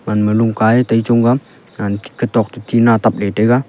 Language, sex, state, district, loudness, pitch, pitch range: Wancho, male, Arunachal Pradesh, Longding, -15 LUFS, 115 Hz, 105-120 Hz